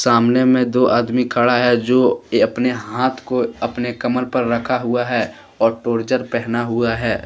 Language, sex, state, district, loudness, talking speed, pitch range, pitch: Hindi, male, Jharkhand, Deoghar, -18 LUFS, 175 wpm, 120-125 Hz, 120 Hz